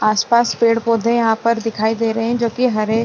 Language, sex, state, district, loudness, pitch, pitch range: Hindi, female, Chhattisgarh, Rajnandgaon, -17 LUFS, 230 Hz, 225-235 Hz